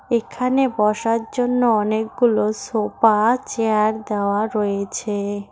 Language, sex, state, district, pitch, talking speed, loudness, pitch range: Bengali, female, West Bengal, Cooch Behar, 220 Hz, 85 wpm, -20 LUFS, 210-235 Hz